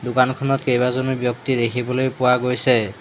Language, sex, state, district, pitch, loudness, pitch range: Assamese, male, Assam, Hailakandi, 125 Hz, -19 LUFS, 125-130 Hz